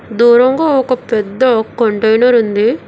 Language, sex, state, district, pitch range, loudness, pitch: Telugu, female, Telangana, Hyderabad, 220-255 Hz, -12 LUFS, 235 Hz